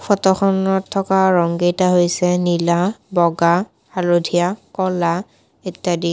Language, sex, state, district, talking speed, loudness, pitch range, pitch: Assamese, female, Assam, Kamrup Metropolitan, 90 wpm, -17 LUFS, 175-190 Hz, 180 Hz